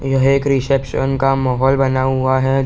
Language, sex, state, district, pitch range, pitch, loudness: Hindi, male, Bihar, East Champaran, 130-135 Hz, 135 Hz, -16 LUFS